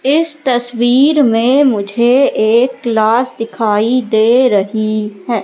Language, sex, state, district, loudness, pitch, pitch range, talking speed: Hindi, female, Madhya Pradesh, Katni, -12 LUFS, 235 Hz, 220-255 Hz, 110 wpm